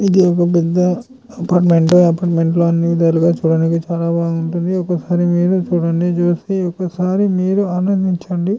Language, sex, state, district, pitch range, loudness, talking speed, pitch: Telugu, male, Andhra Pradesh, Chittoor, 170-185 Hz, -15 LUFS, 120 wpm, 175 Hz